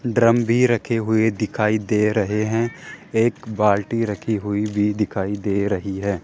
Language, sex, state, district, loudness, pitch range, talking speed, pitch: Hindi, male, Rajasthan, Jaipur, -21 LUFS, 105-115 Hz, 165 wpm, 110 Hz